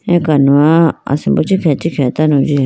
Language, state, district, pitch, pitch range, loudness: Idu Mishmi, Arunachal Pradesh, Lower Dibang Valley, 150 Hz, 140-165 Hz, -12 LUFS